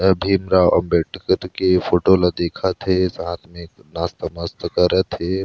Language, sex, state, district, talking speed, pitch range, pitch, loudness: Chhattisgarhi, male, Chhattisgarh, Rajnandgaon, 155 wpm, 85-95 Hz, 90 Hz, -19 LUFS